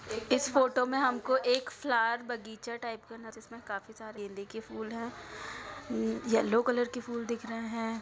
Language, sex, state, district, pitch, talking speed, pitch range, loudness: Hindi, female, Bihar, Araria, 230 Hz, 245 wpm, 225-245 Hz, -32 LUFS